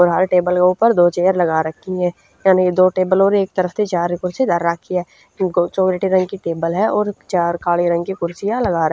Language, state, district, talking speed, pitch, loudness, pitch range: Haryanvi, Haryana, Rohtak, 240 wpm, 180 Hz, -17 LUFS, 175-190 Hz